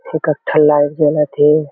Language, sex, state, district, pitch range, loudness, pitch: Chhattisgarhi, male, Chhattisgarh, Kabirdham, 145-150 Hz, -14 LUFS, 150 Hz